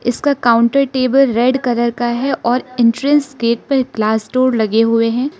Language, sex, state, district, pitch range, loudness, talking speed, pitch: Hindi, female, Arunachal Pradesh, Lower Dibang Valley, 235-270 Hz, -15 LUFS, 175 wpm, 245 Hz